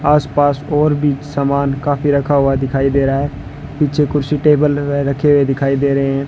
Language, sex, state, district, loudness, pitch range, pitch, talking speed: Hindi, male, Rajasthan, Bikaner, -15 LUFS, 140-145 Hz, 140 Hz, 190 wpm